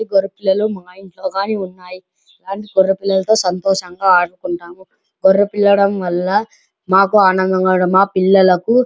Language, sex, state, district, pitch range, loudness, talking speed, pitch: Telugu, male, Andhra Pradesh, Anantapur, 185-200 Hz, -15 LUFS, 95 wpm, 190 Hz